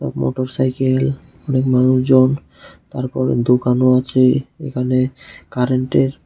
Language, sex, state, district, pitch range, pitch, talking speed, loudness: Bengali, male, Tripura, West Tripura, 125-130 Hz, 130 Hz, 75 wpm, -17 LUFS